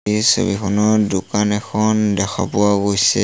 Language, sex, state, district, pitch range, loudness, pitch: Assamese, male, Assam, Sonitpur, 100-105 Hz, -17 LUFS, 105 Hz